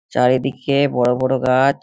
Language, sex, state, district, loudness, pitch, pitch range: Bengali, male, West Bengal, Malda, -17 LUFS, 130 Hz, 125-135 Hz